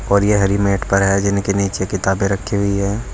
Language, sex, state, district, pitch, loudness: Hindi, male, Uttar Pradesh, Saharanpur, 100 Hz, -17 LUFS